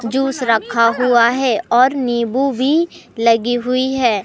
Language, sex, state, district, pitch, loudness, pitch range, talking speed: Hindi, male, Madhya Pradesh, Katni, 245 Hz, -16 LUFS, 235-265 Hz, 140 wpm